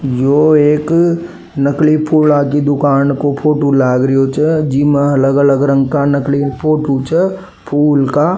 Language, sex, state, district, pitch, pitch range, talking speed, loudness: Rajasthani, male, Rajasthan, Nagaur, 145 Hz, 140-155 Hz, 150 wpm, -12 LUFS